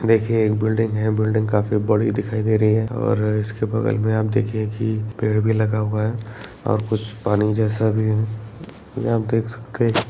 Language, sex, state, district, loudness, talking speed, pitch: Hindi, male, Bihar, Lakhisarai, -21 LUFS, 195 wpm, 110 Hz